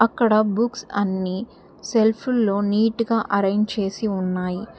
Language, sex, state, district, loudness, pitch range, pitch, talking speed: Telugu, female, Telangana, Hyderabad, -21 LUFS, 200-225 Hz, 215 Hz, 110 wpm